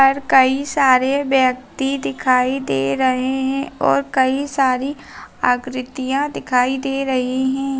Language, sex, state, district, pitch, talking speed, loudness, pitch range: Hindi, female, Bihar, Araria, 265 Hz, 125 wpm, -18 LUFS, 255-275 Hz